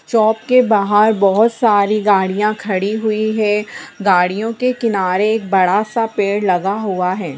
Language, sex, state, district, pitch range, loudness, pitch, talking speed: Hindi, female, Bihar, Bhagalpur, 195-220 Hz, -15 LUFS, 210 Hz, 155 wpm